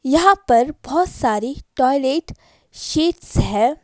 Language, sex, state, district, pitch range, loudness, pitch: Hindi, female, Himachal Pradesh, Shimla, 255-335 Hz, -18 LUFS, 290 Hz